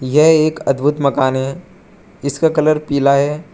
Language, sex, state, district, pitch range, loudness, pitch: Hindi, male, Arunachal Pradesh, Lower Dibang Valley, 140-160 Hz, -15 LUFS, 150 Hz